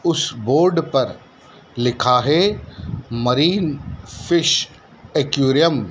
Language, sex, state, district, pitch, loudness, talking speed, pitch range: Hindi, male, Madhya Pradesh, Dhar, 150 Hz, -18 LUFS, 90 wpm, 125-170 Hz